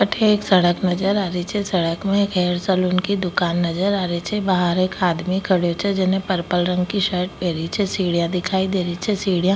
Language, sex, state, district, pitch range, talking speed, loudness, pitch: Rajasthani, female, Rajasthan, Nagaur, 175-195 Hz, 225 wpm, -20 LUFS, 185 Hz